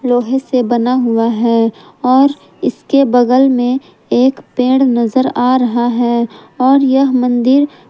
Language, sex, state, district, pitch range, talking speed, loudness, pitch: Hindi, female, Jharkhand, Palamu, 240-265 Hz, 135 wpm, -13 LUFS, 250 Hz